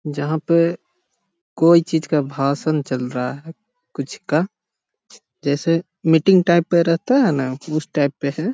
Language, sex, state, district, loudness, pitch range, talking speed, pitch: Magahi, male, Bihar, Jahanabad, -19 LUFS, 145-170 Hz, 155 wpm, 160 Hz